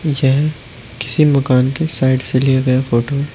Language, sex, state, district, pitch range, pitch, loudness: Hindi, male, Uttar Pradesh, Shamli, 125-140 Hz, 130 Hz, -14 LUFS